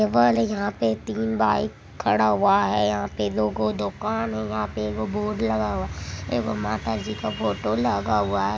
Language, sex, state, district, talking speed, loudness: Maithili, male, Bihar, Supaul, 195 wpm, -24 LUFS